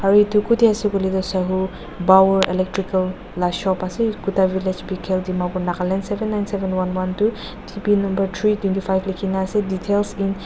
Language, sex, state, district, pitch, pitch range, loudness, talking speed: Nagamese, female, Nagaland, Dimapur, 190 Hz, 185-205 Hz, -20 LUFS, 200 wpm